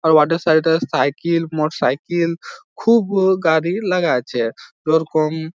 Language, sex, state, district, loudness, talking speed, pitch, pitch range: Bengali, male, West Bengal, Jhargram, -18 LUFS, 130 wpm, 160 Hz, 155-170 Hz